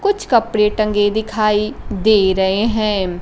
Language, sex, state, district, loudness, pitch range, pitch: Hindi, female, Bihar, Kaimur, -16 LUFS, 205-220 Hz, 215 Hz